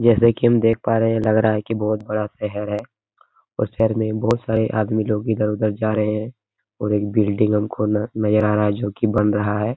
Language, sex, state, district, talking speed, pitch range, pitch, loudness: Hindi, male, Uttar Pradesh, Hamirpur, 240 wpm, 105-110 Hz, 110 Hz, -20 LUFS